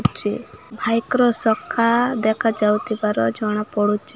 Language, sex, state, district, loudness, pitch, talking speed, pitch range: Odia, female, Odisha, Malkangiri, -20 LUFS, 220 Hz, 85 wpm, 210-240 Hz